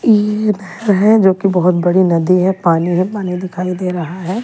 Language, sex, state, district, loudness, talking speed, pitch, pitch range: Hindi, female, Delhi, New Delhi, -14 LUFS, 205 wpm, 185 Hz, 180-200 Hz